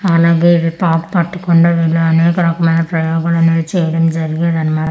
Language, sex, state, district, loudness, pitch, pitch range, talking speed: Telugu, female, Andhra Pradesh, Manyam, -13 LUFS, 165 Hz, 165-170 Hz, 160 wpm